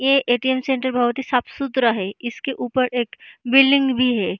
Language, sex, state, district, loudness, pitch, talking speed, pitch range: Hindi, female, Uttar Pradesh, Hamirpur, -19 LUFS, 255 Hz, 190 wpm, 245-270 Hz